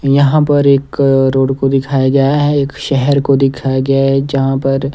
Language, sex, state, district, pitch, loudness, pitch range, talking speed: Hindi, male, Himachal Pradesh, Shimla, 135 Hz, -12 LUFS, 135-140 Hz, 195 wpm